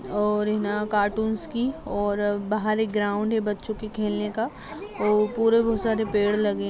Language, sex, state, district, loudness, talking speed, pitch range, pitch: Hindi, female, Chhattisgarh, Kabirdham, -25 LUFS, 145 wpm, 205-220 Hz, 210 Hz